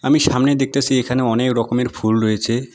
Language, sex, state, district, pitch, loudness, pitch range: Bengali, male, West Bengal, Alipurduar, 125 Hz, -17 LUFS, 115-135 Hz